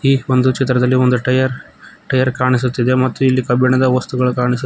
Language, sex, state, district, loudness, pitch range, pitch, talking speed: Kannada, male, Karnataka, Koppal, -15 LUFS, 125-130 Hz, 130 Hz, 165 wpm